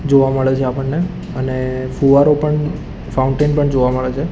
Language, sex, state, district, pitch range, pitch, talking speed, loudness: Gujarati, male, Gujarat, Gandhinagar, 130-150 Hz, 135 Hz, 165 wpm, -16 LUFS